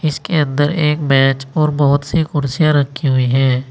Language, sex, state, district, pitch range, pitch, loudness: Hindi, male, Uttar Pradesh, Saharanpur, 135-155 Hz, 145 Hz, -15 LUFS